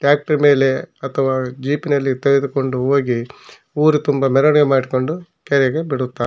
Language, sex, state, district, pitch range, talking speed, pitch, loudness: Kannada, male, Karnataka, Shimoga, 130-145 Hz, 135 wpm, 140 Hz, -17 LUFS